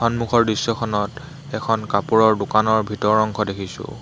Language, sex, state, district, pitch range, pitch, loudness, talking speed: Assamese, male, Assam, Hailakandi, 105-115 Hz, 110 Hz, -20 LUFS, 120 wpm